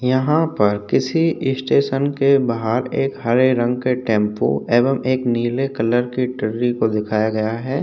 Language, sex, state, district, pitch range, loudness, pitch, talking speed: Hindi, male, Uttar Pradesh, Hamirpur, 115-135 Hz, -19 LUFS, 125 Hz, 145 wpm